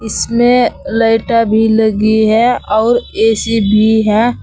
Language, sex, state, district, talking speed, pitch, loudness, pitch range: Hindi, female, Uttar Pradesh, Saharanpur, 120 wpm, 225 Hz, -12 LUFS, 220-235 Hz